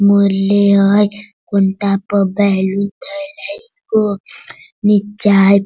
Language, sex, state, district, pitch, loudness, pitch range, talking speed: Hindi, female, Bihar, Sitamarhi, 200 Hz, -14 LUFS, 195-210 Hz, 105 wpm